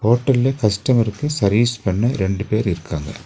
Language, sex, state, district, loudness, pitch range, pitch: Tamil, male, Tamil Nadu, Nilgiris, -19 LUFS, 100-120 Hz, 110 Hz